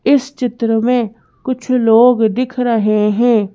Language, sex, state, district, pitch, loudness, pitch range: Hindi, female, Madhya Pradesh, Bhopal, 240 Hz, -14 LUFS, 225-250 Hz